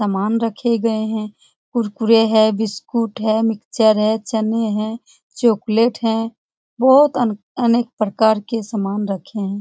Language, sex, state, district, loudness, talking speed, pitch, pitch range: Hindi, female, Bihar, Jamui, -18 LUFS, 135 wpm, 220 Hz, 215-230 Hz